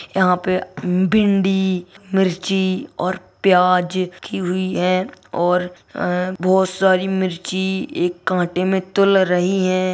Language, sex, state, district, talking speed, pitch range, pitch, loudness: Hindi, female, Bihar, Gaya, 110 wpm, 180-190 Hz, 185 Hz, -19 LUFS